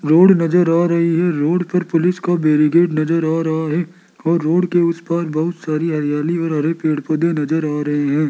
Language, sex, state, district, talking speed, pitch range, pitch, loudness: Hindi, male, Rajasthan, Jaipur, 215 wpm, 155-170 Hz, 165 Hz, -17 LUFS